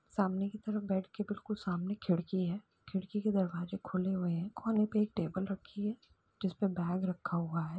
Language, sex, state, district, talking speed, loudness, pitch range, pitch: Hindi, female, Uttar Pradesh, Jalaun, 200 wpm, -36 LUFS, 180-210 Hz, 190 Hz